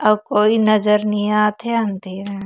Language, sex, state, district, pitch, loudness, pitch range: Chhattisgarhi, female, Chhattisgarh, Korba, 210 Hz, -17 LUFS, 205-215 Hz